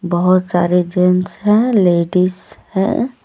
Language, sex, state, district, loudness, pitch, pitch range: Hindi, female, Jharkhand, Deoghar, -15 LUFS, 180 Hz, 180-205 Hz